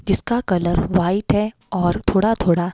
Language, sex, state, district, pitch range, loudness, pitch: Hindi, female, Himachal Pradesh, Shimla, 175-210 Hz, -19 LUFS, 185 Hz